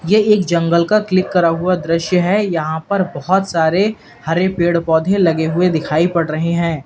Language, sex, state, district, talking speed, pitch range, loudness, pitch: Hindi, male, Uttar Pradesh, Lalitpur, 190 wpm, 160-185 Hz, -15 LUFS, 170 Hz